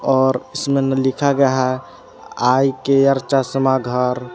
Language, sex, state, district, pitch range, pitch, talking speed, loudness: Hindi, male, Jharkhand, Palamu, 130-135 Hz, 130 Hz, 110 wpm, -17 LUFS